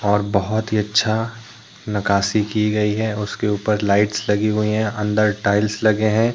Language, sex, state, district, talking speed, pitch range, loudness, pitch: Hindi, male, Jharkhand, Deoghar, 170 wpm, 105-110 Hz, -19 LUFS, 105 Hz